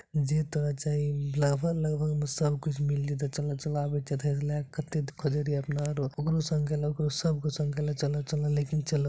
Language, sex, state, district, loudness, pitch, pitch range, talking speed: Maithili, male, Bihar, Supaul, -30 LUFS, 150 Hz, 145-150 Hz, 245 wpm